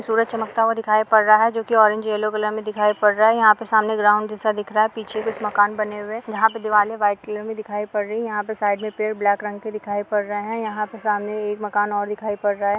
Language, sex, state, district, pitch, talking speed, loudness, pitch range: Hindi, female, Jharkhand, Sahebganj, 215 Hz, 300 wpm, -20 LUFS, 210-220 Hz